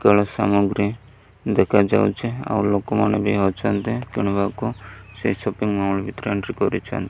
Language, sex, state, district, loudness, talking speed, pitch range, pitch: Odia, male, Odisha, Malkangiri, -21 LUFS, 125 wpm, 100-110 Hz, 100 Hz